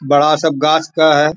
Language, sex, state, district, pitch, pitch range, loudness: Hindi, male, Bihar, Bhagalpur, 155 Hz, 145-160 Hz, -13 LUFS